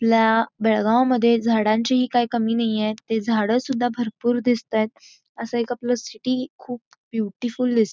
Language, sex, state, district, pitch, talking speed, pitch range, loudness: Marathi, female, Karnataka, Belgaum, 235 Hz, 160 wpm, 225-245 Hz, -22 LUFS